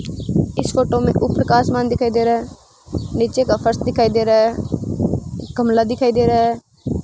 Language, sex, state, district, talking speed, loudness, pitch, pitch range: Hindi, female, Rajasthan, Bikaner, 185 wpm, -18 LUFS, 230 Hz, 225-240 Hz